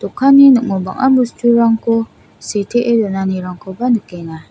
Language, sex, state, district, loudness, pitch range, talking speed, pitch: Garo, female, Meghalaya, South Garo Hills, -13 LUFS, 190-240 Hz, 95 wpm, 230 Hz